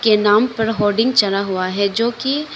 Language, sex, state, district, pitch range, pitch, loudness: Hindi, female, Arunachal Pradesh, Lower Dibang Valley, 200-235 Hz, 215 Hz, -17 LUFS